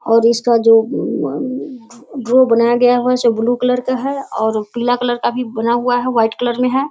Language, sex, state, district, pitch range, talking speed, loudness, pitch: Hindi, female, Bihar, Sitamarhi, 230-250 Hz, 190 wpm, -15 LUFS, 245 Hz